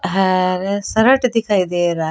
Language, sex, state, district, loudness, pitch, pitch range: Rajasthani, female, Rajasthan, Churu, -16 LUFS, 190 Hz, 185-220 Hz